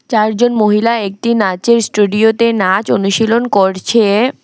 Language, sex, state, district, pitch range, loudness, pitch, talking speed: Bengali, female, West Bengal, Alipurduar, 205-230 Hz, -12 LUFS, 220 Hz, 110 wpm